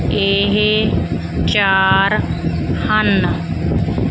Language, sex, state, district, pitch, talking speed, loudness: Punjabi, female, Punjab, Fazilka, 190 Hz, 45 wpm, -16 LUFS